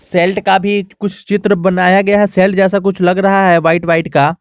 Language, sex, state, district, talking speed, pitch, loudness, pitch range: Hindi, male, Jharkhand, Garhwa, 230 wpm, 190 Hz, -12 LUFS, 180-200 Hz